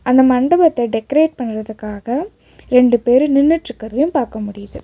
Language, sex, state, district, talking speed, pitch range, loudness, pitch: Tamil, female, Tamil Nadu, Nilgiris, 110 wpm, 220-285 Hz, -15 LUFS, 250 Hz